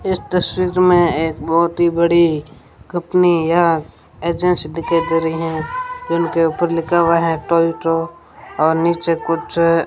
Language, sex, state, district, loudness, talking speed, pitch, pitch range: Hindi, female, Rajasthan, Bikaner, -17 LUFS, 145 wpm, 170 Hz, 165-175 Hz